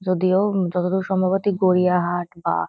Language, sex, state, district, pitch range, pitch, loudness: Bengali, female, West Bengal, Kolkata, 180-190 Hz, 185 Hz, -20 LUFS